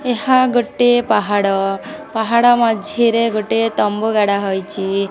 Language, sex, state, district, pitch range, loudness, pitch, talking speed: Odia, female, Odisha, Nuapada, 200-240 Hz, -16 LUFS, 220 Hz, 105 wpm